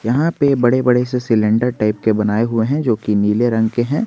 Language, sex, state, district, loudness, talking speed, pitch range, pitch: Hindi, male, Jharkhand, Garhwa, -16 LUFS, 250 wpm, 110-125 Hz, 120 Hz